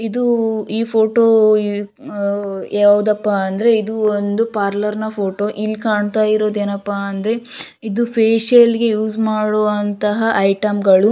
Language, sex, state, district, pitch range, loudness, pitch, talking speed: Kannada, female, Karnataka, Shimoga, 205-225 Hz, -16 LUFS, 215 Hz, 130 wpm